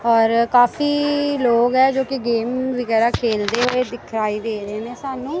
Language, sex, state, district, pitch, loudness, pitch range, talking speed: Punjabi, female, Punjab, Kapurthala, 245 Hz, -19 LUFS, 230-265 Hz, 165 wpm